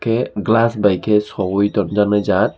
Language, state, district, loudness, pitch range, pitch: Kokborok, Tripura, Dhalai, -17 LUFS, 100-110 Hz, 105 Hz